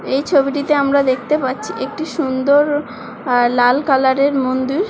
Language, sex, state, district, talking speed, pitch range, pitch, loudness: Bengali, female, West Bengal, Kolkata, 120 wpm, 260-290 Hz, 275 Hz, -16 LUFS